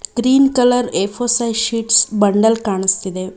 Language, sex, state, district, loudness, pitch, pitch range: Kannada, female, Karnataka, Bangalore, -15 LUFS, 225 Hz, 200-245 Hz